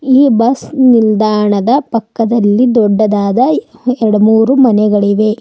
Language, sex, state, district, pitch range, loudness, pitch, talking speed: Kannada, female, Karnataka, Bidar, 210-250 Hz, -10 LUFS, 225 Hz, 100 wpm